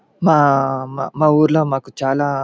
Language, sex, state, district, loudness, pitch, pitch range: Telugu, male, Andhra Pradesh, Chittoor, -16 LUFS, 140 Hz, 135-155 Hz